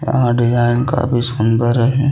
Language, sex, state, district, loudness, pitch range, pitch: Hindi, male, Chhattisgarh, Balrampur, -15 LUFS, 120-125 Hz, 120 Hz